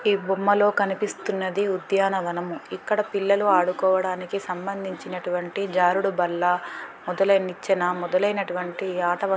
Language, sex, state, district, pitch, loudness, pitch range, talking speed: Telugu, female, Telangana, Karimnagar, 190 Hz, -24 LUFS, 180-200 Hz, 95 wpm